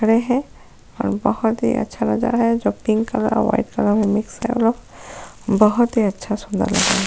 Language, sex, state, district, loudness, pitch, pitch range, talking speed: Hindi, female, Goa, North and South Goa, -19 LUFS, 220 Hz, 210-235 Hz, 205 wpm